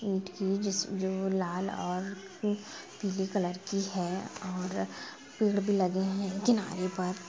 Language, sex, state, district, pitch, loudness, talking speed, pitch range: Hindi, female, Chhattisgarh, Rajnandgaon, 190 Hz, -32 LUFS, 140 wpm, 185-200 Hz